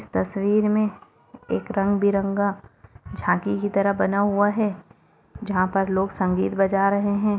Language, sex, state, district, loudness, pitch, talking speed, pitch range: Hindi, female, Maharashtra, Solapur, -22 LUFS, 200 Hz, 145 wpm, 190-205 Hz